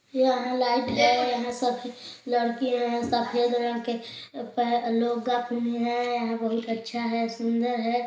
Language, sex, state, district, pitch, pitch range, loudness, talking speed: Hindi, male, Chhattisgarh, Balrampur, 240 Hz, 235-245 Hz, -26 LUFS, 150 wpm